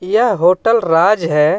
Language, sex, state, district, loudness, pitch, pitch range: Hindi, male, Jharkhand, Ranchi, -13 LUFS, 185 Hz, 165-220 Hz